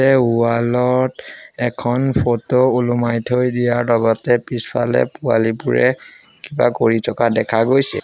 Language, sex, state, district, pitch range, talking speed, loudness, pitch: Assamese, male, Assam, Sonitpur, 115-125 Hz, 110 wpm, -17 LUFS, 120 Hz